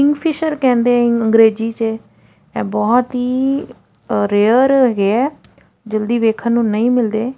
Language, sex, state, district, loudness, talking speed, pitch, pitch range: Punjabi, female, Punjab, Fazilka, -15 LUFS, 130 wpm, 235 Hz, 220-255 Hz